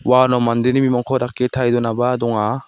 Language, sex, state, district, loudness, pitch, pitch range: Garo, male, Meghalaya, South Garo Hills, -17 LUFS, 125 Hz, 120-125 Hz